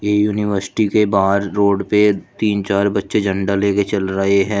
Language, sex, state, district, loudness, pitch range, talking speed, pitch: Hindi, male, Uttar Pradesh, Shamli, -17 LUFS, 100-105 Hz, 170 wpm, 100 Hz